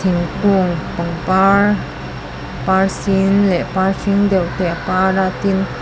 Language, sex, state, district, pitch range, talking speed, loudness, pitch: Mizo, female, Mizoram, Aizawl, 185-195 Hz, 135 wpm, -16 LUFS, 190 Hz